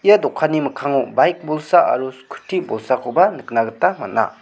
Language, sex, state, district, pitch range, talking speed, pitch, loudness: Garo, male, Meghalaya, South Garo Hills, 130-175 Hz, 150 wpm, 150 Hz, -18 LUFS